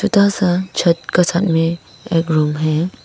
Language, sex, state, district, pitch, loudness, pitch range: Hindi, female, Arunachal Pradesh, Papum Pare, 170 Hz, -16 LUFS, 160-185 Hz